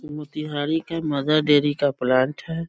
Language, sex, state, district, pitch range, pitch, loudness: Hindi, female, Bihar, East Champaran, 145-155 Hz, 150 Hz, -22 LUFS